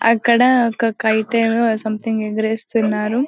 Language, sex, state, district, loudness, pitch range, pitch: Telugu, female, Telangana, Karimnagar, -17 LUFS, 220-235 Hz, 225 Hz